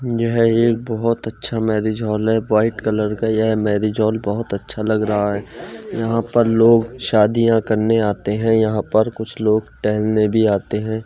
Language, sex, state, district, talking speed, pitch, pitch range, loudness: Hindi, male, Uttar Pradesh, Jyotiba Phule Nagar, 170 wpm, 110 Hz, 105-115 Hz, -18 LUFS